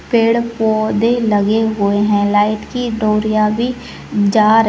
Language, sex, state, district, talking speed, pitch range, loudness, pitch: Hindi, female, Uttarakhand, Uttarkashi, 155 wpm, 210-230 Hz, -15 LUFS, 215 Hz